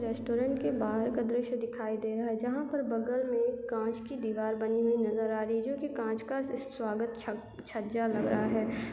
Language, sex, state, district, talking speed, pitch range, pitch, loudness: Hindi, female, Chhattisgarh, Raigarh, 195 wpm, 220-245 Hz, 230 Hz, -33 LUFS